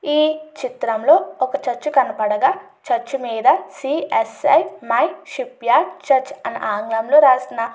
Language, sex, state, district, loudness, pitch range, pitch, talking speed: Telugu, female, Andhra Pradesh, Chittoor, -18 LUFS, 230-300 Hz, 270 Hz, 130 wpm